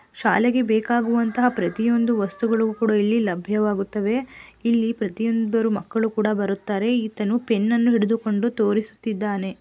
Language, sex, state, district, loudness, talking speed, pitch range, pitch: Kannada, female, Karnataka, Gulbarga, -22 LUFS, 110 wpm, 210-230 Hz, 220 Hz